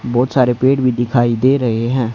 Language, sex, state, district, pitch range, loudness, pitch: Hindi, male, Haryana, Charkhi Dadri, 120-130 Hz, -15 LUFS, 125 Hz